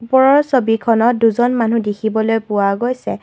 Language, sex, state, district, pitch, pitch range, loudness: Assamese, female, Assam, Kamrup Metropolitan, 230 Hz, 220-245 Hz, -15 LUFS